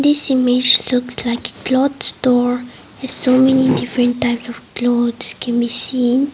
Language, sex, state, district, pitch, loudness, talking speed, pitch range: English, female, Nagaland, Dimapur, 250 Hz, -16 LUFS, 160 wpm, 240-260 Hz